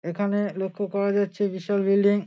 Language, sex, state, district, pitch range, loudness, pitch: Bengali, male, West Bengal, Dakshin Dinajpur, 195-205 Hz, -25 LUFS, 200 Hz